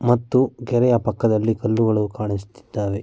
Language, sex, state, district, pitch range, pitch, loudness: Kannada, male, Karnataka, Mysore, 105-120 Hz, 115 Hz, -20 LUFS